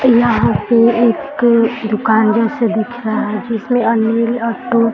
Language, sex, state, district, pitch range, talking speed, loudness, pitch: Hindi, female, Bihar, Sitamarhi, 225-235 Hz, 170 wpm, -14 LUFS, 230 Hz